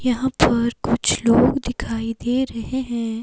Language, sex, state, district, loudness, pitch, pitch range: Hindi, female, Himachal Pradesh, Shimla, -20 LUFS, 240 Hz, 230-260 Hz